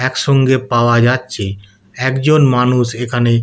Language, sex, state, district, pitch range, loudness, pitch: Bengali, male, West Bengal, Kolkata, 120-130 Hz, -14 LUFS, 125 Hz